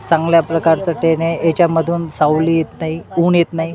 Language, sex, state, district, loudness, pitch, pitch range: Marathi, male, Maharashtra, Washim, -15 LUFS, 165 Hz, 160-170 Hz